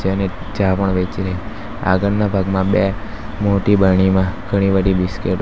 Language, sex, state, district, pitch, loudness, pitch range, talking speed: Gujarati, male, Gujarat, Valsad, 95 Hz, -17 LUFS, 95-105 Hz, 155 wpm